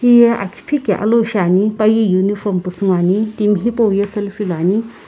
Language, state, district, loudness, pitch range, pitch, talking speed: Sumi, Nagaland, Kohima, -15 LUFS, 195-225 Hz, 205 Hz, 140 wpm